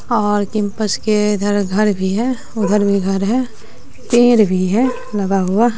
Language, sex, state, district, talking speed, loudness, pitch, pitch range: Hindi, female, Bihar, West Champaran, 165 wpm, -16 LUFS, 210 Hz, 200-230 Hz